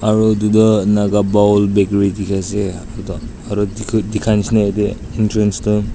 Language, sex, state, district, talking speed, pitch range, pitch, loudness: Nagamese, male, Nagaland, Dimapur, 150 wpm, 100-110 Hz, 105 Hz, -15 LUFS